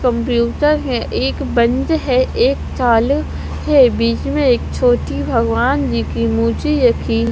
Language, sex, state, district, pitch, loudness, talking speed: Hindi, female, Punjab, Kapurthala, 240 Hz, -16 LUFS, 140 wpm